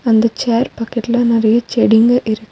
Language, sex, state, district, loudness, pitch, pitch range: Tamil, female, Tamil Nadu, Nilgiris, -14 LUFS, 230 Hz, 225-240 Hz